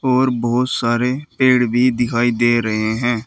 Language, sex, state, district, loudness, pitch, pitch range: Hindi, male, Uttar Pradesh, Saharanpur, -17 LUFS, 120 Hz, 120-125 Hz